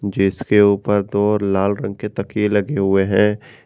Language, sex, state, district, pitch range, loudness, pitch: Hindi, male, Jharkhand, Garhwa, 100-105 Hz, -18 LUFS, 105 Hz